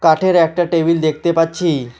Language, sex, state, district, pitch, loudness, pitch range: Bengali, male, West Bengal, Alipurduar, 165 Hz, -15 LUFS, 160-170 Hz